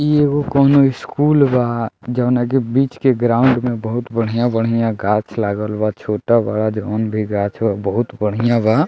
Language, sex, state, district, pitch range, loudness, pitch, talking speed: Bhojpuri, male, Bihar, Muzaffarpur, 110-130 Hz, -17 LUFS, 115 Hz, 175 wpm